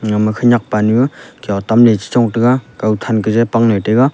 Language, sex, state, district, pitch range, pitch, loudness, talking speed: Wancho, male, Arunachal Pradesh, Longding, 110-120 Hz, 115 Hz, -14 LUFS, 145 wpm